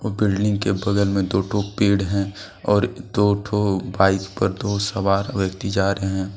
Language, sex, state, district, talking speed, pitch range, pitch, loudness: Hindi, male, Jharkhand, Deoghar, 180 wpm, 95-105 Hz, 100 Hz, -21 LUFS